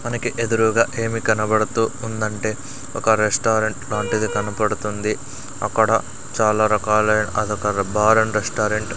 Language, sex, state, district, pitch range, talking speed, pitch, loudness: Telugu, male, Andhra Pradesh, Sri Satya Sai, 105-115 Hz, 105 wpm, 110 Hz, -20 LUFS